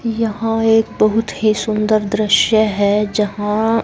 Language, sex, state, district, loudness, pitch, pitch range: Hindi, female, Haryana, Jhajjar, -16 LUFS, 215 Hz, 210-225 Hz